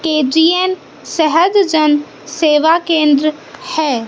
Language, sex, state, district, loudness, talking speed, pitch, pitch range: Hindi, female, Madhya Pradesh, Katni, -13 LUFS, 90 wpm, 315 Hz, 300-335 Hz